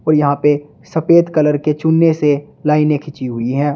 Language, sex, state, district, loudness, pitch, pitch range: Hindi, male, Uttar Pradesh, Shamli, -15 LUFS, 150 Hz, 145-155 Hz